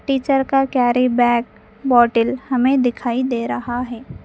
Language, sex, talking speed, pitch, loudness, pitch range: Hindi, female, 140 wpm, 245 Hz, -18 LUFS, 240-260 Hz